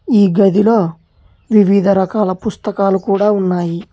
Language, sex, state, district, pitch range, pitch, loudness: Telugu, male, Telangana, Hyderabad, 190-210 Hz, 200 Hz, -14 LUFS